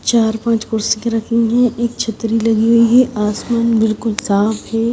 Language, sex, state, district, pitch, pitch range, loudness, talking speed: Hindi, female, Odisha, Sambalpur, 225 Hz, 220-230 Hz, -15 LUFS, 195 wpm